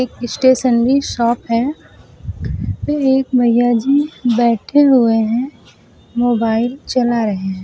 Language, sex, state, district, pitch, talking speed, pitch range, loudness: Hindi, female, Uttar Pradesh, Lucknow, 245 Hz, 110 wpm, 235-265 Hz, -15 LUFS